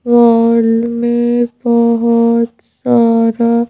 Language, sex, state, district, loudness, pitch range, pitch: Hindi, female, Madhya Pradesh, Bhopal, -12 LUFS, 230-235 Hz, 235 Hz